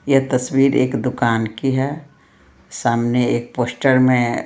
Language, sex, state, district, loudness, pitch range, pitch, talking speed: Hindi, female, Bihar, Patna, -18 LUFS, 120-135 Hz, 130 Hz, 135 wpm